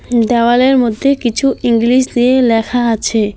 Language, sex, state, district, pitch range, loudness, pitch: Bengali, female, West Bengal, Alipurduar, 230-255 Hz, -12 LUFS, 240 Hz